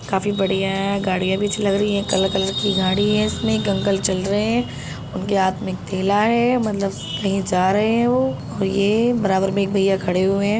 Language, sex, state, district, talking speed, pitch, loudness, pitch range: Hindi, female, Uttar Pradesh, Budaun, 225 wpm, 195 Hz, -20 LUFS, 190-205 Hz